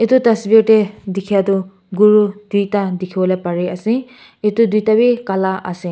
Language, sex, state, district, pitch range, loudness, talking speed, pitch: Nagamese, male, Nagaland, Kohima, 190-220 Hz, -15 LUFS, 160 wpm, 205 Hz